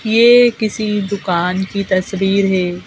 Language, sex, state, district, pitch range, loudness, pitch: Hindi, female, Madhya Pradesh, Bhopal, 185-215 Hz, -15 LUFS, 200 Hz